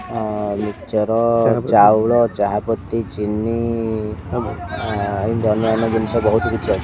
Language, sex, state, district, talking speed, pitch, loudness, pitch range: Odia, male, Odisha, Khordha, 115 wpm, 110 Hz, -18 LUFS, 105-115 Hz